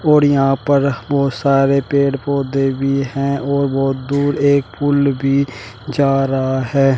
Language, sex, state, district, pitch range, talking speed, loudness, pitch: Hindi, male, Uttar Pradesh, Shamli, 135-140 Hz, 155 wpm, -16 LUFS, 140 Hz